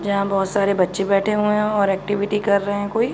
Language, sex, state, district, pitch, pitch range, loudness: Hindi, female, Uttar Pradesh, Jalaun, 200 Hz, 200-210 Hz, -20 LUFS